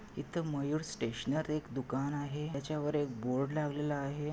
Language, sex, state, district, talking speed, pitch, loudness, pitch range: Marathi, male, Maharashtra, Nagpur, 165 wpm, 145 Hz, -36 LUFS, 135-150 Hz